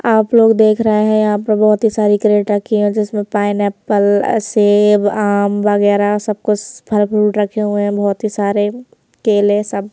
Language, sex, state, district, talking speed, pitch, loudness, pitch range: Hindi, female, Madhya Pradesh, Bhopal, 175 wpm, 210 Hz, -14 LUFS, 205-215 Hz